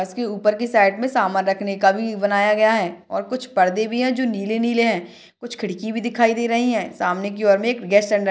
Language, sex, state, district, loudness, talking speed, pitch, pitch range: Hindi, female, Maharashtra, Dhule, -20 LUFS, 260 wpm, 215 Hz, 200-235 Hz